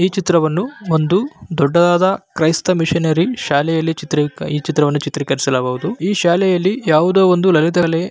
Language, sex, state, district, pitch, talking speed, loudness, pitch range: Kannada, male, Karnataka, Bellary, 165 Hz, 120 wpm, -16 LUFS, 155-185 Hz